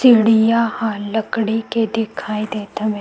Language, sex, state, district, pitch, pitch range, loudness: Chhattisgarhi, female, Chhattisgarh, Sukma, 225 Hz, 215-225 Hz, -18 LUFS